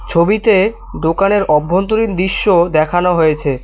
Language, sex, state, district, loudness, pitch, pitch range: Bengali, male, West Bengal, Cooch Behar, -13 LUFS, 180 Hz, 160-205 Hz